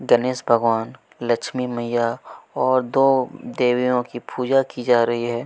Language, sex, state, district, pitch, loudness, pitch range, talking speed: Hindi, male, Chhattisgarh, Kabirdham, 125 Hz, -21 LUFS, 120-125 Hz, 145 wpm